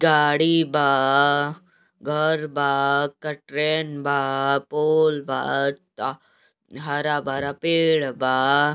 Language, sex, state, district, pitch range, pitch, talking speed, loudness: Hindi, male, Uttar Pradesh, Deoria, 140-155 Hz, 145 Hz, 80 wpm, -22 LUFS